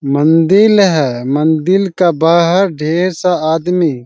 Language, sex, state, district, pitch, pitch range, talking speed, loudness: Hindi, male, Bihar, Jahanabad, 165 Hz, 155-185 Hz, 120 wpm, -12 LUFS